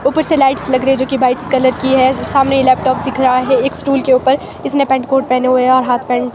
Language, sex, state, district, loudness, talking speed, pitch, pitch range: Hindi, female, Himachal Pradesh, Shimla, -13 LUFS, 300 wpm, 260 Hz, 255-270 Hz